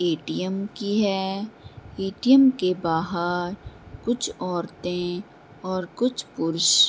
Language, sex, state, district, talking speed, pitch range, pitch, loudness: Hindi, female, Bihar, Sitamarhi, 105 wpm, 175-205 Hz, 185 Hz, -24 LUFS